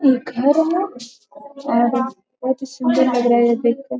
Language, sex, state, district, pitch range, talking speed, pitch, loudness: Hindi, female, Bihar, Jamui, 240-275 Hz, 180 wpm, 255 Hz, -18 LUFS